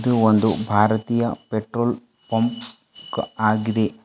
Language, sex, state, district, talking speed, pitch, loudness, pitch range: Kannada, female, Karnataka, Bidar, 90 wpm, 115 Hz, -21 LUFS, 110-120 Hz